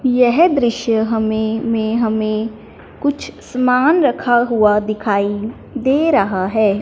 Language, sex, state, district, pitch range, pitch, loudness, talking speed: Hindi, male, Punjab, Fazilka, 215-255 Hz, 225 Hz, -16 LUFS, 115 wpm